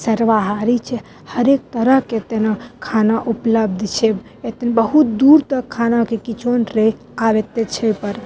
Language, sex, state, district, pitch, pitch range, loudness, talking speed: Maithili, female, Bihar, Madhepura, 230 Hz, 220-245 Hz, -17 LUFS, 160 wpm